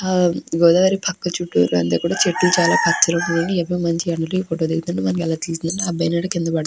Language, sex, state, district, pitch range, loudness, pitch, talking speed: Telugu, female, Andhra Pradesh, Chittoor, 165-175 Hz, -19 LUFS, 170 Hz, 200 wpm